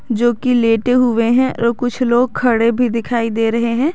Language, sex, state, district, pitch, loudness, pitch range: Hindi, female, Jharkhand, Garhwa, 240 Hz, -15 LUFS, 230-250 Hz